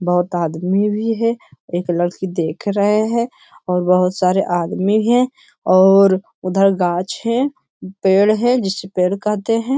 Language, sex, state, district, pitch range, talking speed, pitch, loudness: Hindi, male, Bihar, Lakhisarai, 180-225 Hz, 145 wpm, 195 Hz, -17 LUFS